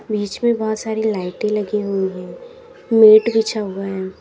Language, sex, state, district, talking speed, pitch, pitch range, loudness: Hindi, female, Uttar Pradesh, Lalitpur, 170 wpm, 215 Hz, 195-225 Hz, -17 LUFS